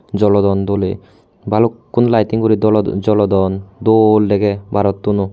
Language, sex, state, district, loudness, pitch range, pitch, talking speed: Chakma, male, Tripura, Unakoti, -15 LUFS, 100-110 Hz, 105 Hz, 115 wpm